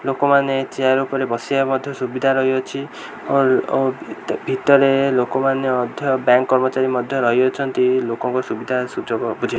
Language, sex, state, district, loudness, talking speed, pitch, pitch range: Odia, male, Odisha, Khordha, -18 LUFS, 145 wpm, 130 Hz, 130-135 Hz